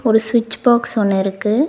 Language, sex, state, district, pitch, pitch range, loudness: Tamil, female, Tamil Nadu, Nilgiris, 220 Hz, 210-235 Hz, -16 LUFS